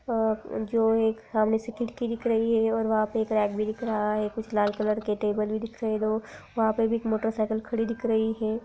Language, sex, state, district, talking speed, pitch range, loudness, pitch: Hindi, female, Bihar, Darbhanga, 255 wpm, 215-225 Hz, -27 LUFS, 220 Hz